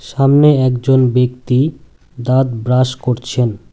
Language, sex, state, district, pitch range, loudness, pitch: Bengali, male, West Bengal, Cooch Behar, 125-135 Hz, -14 LUFS, 125 Hz